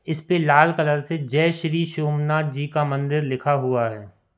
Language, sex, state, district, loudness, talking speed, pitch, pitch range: Hindi, male, Madhya Pradesh, Katni, -21 LUFS, 180 wpm, 150 Hz, 140-160 Hz